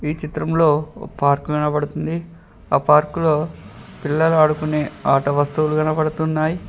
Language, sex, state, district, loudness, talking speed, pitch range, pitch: Telugu, male, Telangana, Mahabubabad, -19 LUFS, 115 wpm, 150-160 Hz, 155 Hz